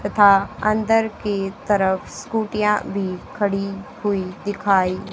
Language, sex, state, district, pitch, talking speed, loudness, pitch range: Hindi, female, Haryana, Charkhi Dadri, 200 Hz, 105 wpm, -21 LUFS, 195-210 Hz